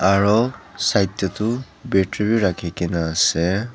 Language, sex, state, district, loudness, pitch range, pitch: Nagamese, male, Nagaland, Dimapur, -20 LUFS, 90-110 Hz, 100 Hz